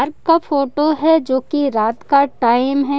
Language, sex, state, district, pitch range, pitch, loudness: Hindi, female, Jharkhand, Ranchi, 260-305 Hz, 280 Hz, -16 LUFS